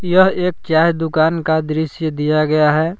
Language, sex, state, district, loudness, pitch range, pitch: Hindi, male, Jharkhand, Palamu, -16 LUFS, 155-170 Hz, 160 Hz